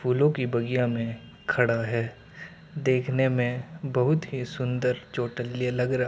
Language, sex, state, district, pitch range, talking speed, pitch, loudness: Hindi, male, Uttar Pradesh, Hamirpur, 120-130 Hz, 150 wpm, 125 Hz, -27 LUFS